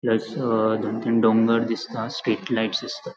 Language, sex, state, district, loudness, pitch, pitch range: Konkani, male, Goa, North and South Goa, -23 LUFS, 115 Hz, 110-115 Hz